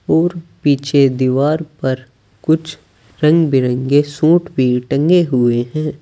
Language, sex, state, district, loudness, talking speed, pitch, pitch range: Hindi, male, Uttar Pradesh, Saharanpur, -15 LUFS, 120 wpm, 145 Hz, 130-160 Hz